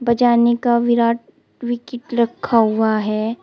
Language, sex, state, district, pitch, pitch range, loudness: Hindi, female, Uttar Pradesh, Shamli, 235 Hz, 230-240 Hz, -18 LUFS